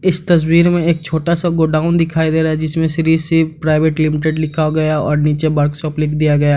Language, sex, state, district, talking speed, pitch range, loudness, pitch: Hindi, male, Bihar, Madhepura, 230 wpm, 155-165 Hz, -15 LUFS, 160 Hz